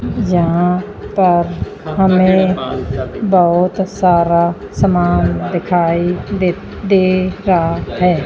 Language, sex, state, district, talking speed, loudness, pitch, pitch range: Hindi, female, Punjab, Fazilka, 80 wpm, -14 LUFS, 180 Hz, 170-190 Hz